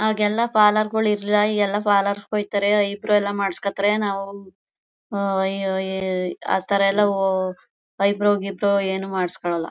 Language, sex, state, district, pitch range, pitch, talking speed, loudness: Kannada, female, Karnataka, Mysore, 195-210 Hz, 200 Hz, 115 wpm, -21 LUFS